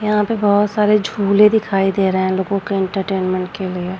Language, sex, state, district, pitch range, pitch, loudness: Hindi, female, Bihar, Vaishali, 190-210 Hz, 195 Hz, -17 LUFS